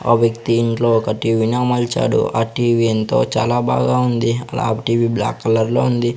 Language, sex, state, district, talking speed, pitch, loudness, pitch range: Telugu, male, Andhra Pradesh, Sri Satya Sai, 175 wpm, 115 Hz, -17 LUFS, 110-120 Hz